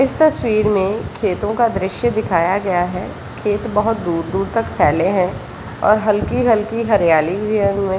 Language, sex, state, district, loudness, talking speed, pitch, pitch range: Hindi, female, Jharkhand, Sahebganj, -17 LUFS, 180 wpm, 210 Hz, 190-225 Hz